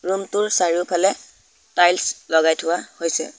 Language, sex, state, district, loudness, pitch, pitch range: Assamese, male, Assam, Sonitpur, -20 LUFS, 175 Hz, 165-190 Hz